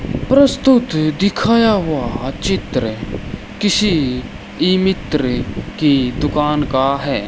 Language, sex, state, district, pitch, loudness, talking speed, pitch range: Hindi, male, Rajasthan, Bikaner, 150 Hz, -16 LUFS, 90 wpm, 130-200 Hz